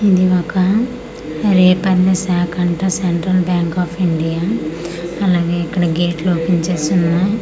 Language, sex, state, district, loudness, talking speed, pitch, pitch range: Telugu, female, Andhra Pradesh, Manyam, -16 LUFS, 115 wpm, 180 Hz, 170-185 Hz